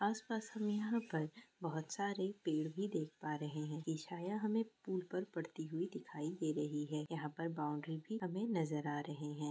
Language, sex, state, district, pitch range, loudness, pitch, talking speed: Hindi, female, Bihar, East Champaran, 155-200 Hz, -42 LUFS, 165 Hz, 200 wpm